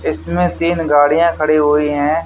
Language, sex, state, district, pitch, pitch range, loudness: Hindi, male, Haryana, Charkhi Dadri, 155 Hz, 150-170 Hz, -14 LUFS